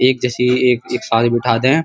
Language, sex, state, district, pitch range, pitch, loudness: Hindi, male, Uttar Pradesh, Muzaffarnagar, 120-130 Hz, 125 Hz, -16 LUFS